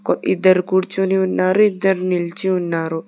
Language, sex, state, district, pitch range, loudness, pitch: Telugu, female, Telangana, Hyderabad, 180-190 Hz, -17 LUFS, 185 Hz